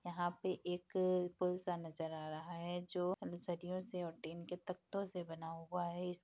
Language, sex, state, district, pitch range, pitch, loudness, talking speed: Hindi, female, Bihar, Madhepura, 170-180 Hz, 175 Hz, -43 LUFS, 190 wpm